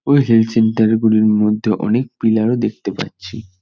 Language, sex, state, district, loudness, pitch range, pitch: Bengali, male, West Bengal, North 24 Parganas, -15 LUFS, 110-115 Hz, 110 Hz